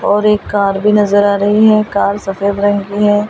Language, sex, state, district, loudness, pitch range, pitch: Hindi, female, Delhi, New Delhi, -12 LUFS, 200-210 Hz, 205 Hz